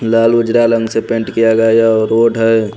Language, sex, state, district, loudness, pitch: Hindi, male, Haryana, Rohtak, -12 LUFS, 115 Hz